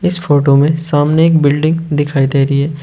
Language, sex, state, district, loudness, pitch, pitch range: Hindi, male, Uttar Pradesh, Shamli, -12 LUFS, 150 Hz, 140-160 Hz